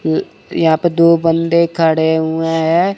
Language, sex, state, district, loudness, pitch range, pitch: Hindi, male, Chandigarh, Chandigarh, -14 LUFS, 160-170 Hz, 165 Hz